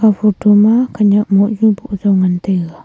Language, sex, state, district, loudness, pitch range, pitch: Wancho, female, Arunachal Pradesh, Longding, -13 LUFS, 195-215 Hz, 205 Hz